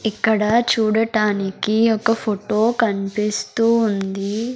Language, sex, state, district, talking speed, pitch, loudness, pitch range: Telugu, male, Andhra Pradesh, Sri Satya Sai, 80 wpm, 215 Hz, -19 LUFS, 210-225 Hz